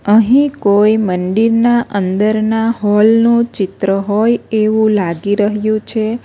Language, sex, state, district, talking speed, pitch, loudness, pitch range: Gujarati, female, Gujarat, Navsari, 125 wpm, 215 Hz, -13 LUFS, 205-225 Hz